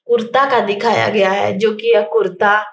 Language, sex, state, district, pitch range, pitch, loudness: Hindi, female, Bihar, Jahanabad, 205-230 Hz, 220 Hz, -15 LUFS